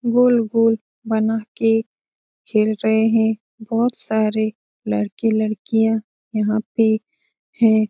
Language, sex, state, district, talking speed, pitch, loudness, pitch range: Hindi, female, Bihar, Lakhisarai, 90 wpm, 220 Hz, -19 LUFS, 215-230 Hz